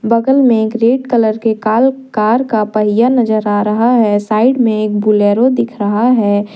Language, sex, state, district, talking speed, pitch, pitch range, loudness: Hindi, female, Jharkhand, Deoghar, 190 wpm, 220 Hz, 215-240 Hz, -12 LUFS